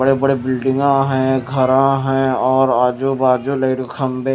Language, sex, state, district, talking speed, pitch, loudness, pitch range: Hindi, male, Himachal Pradesh, Shimla, 180 wpm, 130 Hz, -16 LUFS, 130-135 Hz